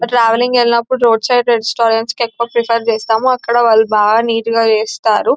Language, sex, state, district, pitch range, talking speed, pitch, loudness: Telugu, female, Telangana, Nalgonda, 225-240 Hz, 180 wpm, 230 Hz, -13 LUFS